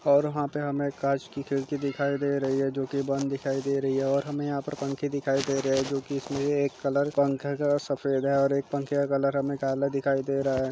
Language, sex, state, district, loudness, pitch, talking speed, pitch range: Hindi, male, Chhattisgarh, Jashpur, -28 LUFS, 140 Hz, 265 wpm, 135-140 Hz